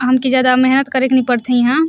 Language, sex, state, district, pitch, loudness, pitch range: Surgujia, female, Chhattisgarh, Sarguja, 255 Hz, -14 LUFS, 250-260 Hz